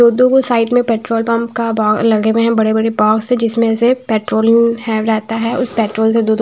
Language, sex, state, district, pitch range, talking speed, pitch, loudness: Hindi, female, Himachal Pradesh, Shimla, 220-235 Hz, 205 wpm, 230 Hz, -14 LUFS